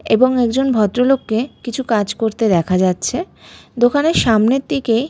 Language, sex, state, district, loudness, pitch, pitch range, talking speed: Bengali, female, West Bengal, Malda, -16 LUFS, 240 Hz, 220-260 Hz, 130 wpm